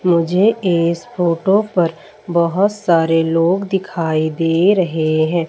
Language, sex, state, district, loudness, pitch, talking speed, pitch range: Hindi, female, Madhya Pradesh, Umaria, -16 LUFS, 170 Hz, 120 wpm, 165-190 Hz